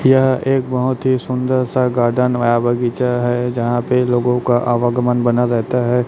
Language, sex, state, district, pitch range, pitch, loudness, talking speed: Hindi, male, Chhattisgarh, Raipur, 120-125 Hz, 125 Hz, -16 LUFS, 180 wpm